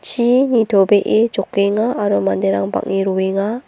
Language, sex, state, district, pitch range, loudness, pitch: Garo, female, Meghalaya, North Garo Hills, 190-230 Hz, -16 LUFS, 200 Hz